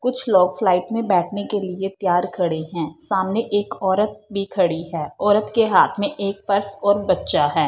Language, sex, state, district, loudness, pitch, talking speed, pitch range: Hindi, female, Punjab, Fazilka, -20 LUFS, 195 Hz, 195 wpm, 180-205 Hz